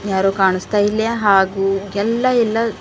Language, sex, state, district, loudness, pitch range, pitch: Kannada, female, Karnataka, Bidar, -17 LUFS, 195-225 Hz, 200 Hz